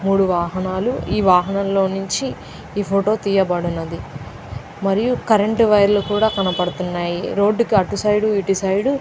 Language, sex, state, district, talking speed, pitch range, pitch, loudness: Telugu, female, Andhra Pradesh, Chittoor, 140 wpm, 180-210 Hz, 195 Hz, -18 LUFS